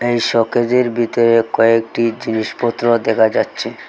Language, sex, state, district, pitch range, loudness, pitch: Bengali, male, Assam, Hailakandi, 115-120 Hz, -15 LUFS, 115 Hz